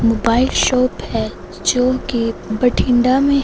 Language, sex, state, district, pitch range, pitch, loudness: Hindi, female, Punjab, Fazilka, 230-255 Hz, 250 Hz, -17 LUFS